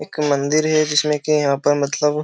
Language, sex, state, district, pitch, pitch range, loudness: Hindi, male, Uttar Pradesh, Jyotiba Phule Nagar, 150 Hz, 145-150 Hz, -18 LUFS